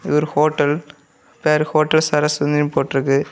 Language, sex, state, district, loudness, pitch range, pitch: Tamil, male, Tamil Nadu, Kanyakumari, -18 LUFS, 145-155 Hz, 150 Hz